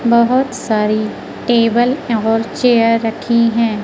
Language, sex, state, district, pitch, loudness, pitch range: Hindi, female, Madhya Pradesh, Katni, 230 Hz, -15 LUFS, 225-240 Hz